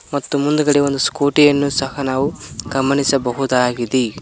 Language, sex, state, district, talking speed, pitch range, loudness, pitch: Kannada, male, Karnataka, Koppal, 115 wpm, 130-145 Hz, -17 LUFS, 140 Hz